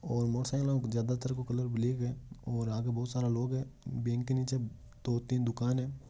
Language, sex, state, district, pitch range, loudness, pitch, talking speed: Marwari, male, Rajasthan, Nagaur, 120-130 Hz, -34 LUFS, 125 Hz, 185 wpm